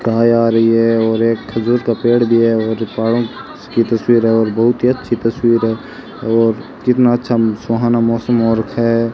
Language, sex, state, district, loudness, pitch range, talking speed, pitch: Hindi, male, Rajasthan, Bikaner, -14 LUFS, 115-120 Hz, 190 wpm, 115 Hz